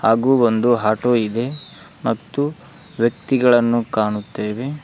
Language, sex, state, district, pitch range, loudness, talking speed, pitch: Kannada, male, Karnataka, Koppal, 110-135 Hz, -19 LUFS, 85 wpm, 120 Hz